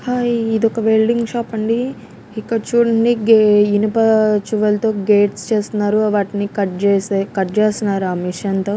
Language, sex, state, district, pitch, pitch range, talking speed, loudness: Telugu, female, Andhra Pradesh, Krishna, 215 Hz, 205-225 Hz, 150 wpm, -16 LUFS